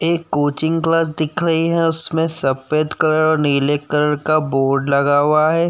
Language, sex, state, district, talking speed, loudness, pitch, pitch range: Hindi, male, Uttar Pradesh, Jyotiba Phule Nagar, 170 wpm, -17 LUFS, 155 Hz, 145-165 Hz